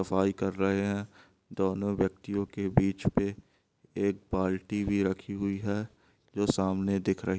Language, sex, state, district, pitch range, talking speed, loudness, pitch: Hindi, male, Andhra Pradesh, Anantapur, 95-100 Hz, 155 wpm, -30 LUFS, 100 Hz